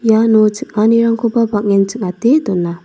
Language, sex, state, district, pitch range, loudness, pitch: Garo, female, Meghalaya, South Garo Hills, 200-230 Hz, -13 LUFS, 220 Hz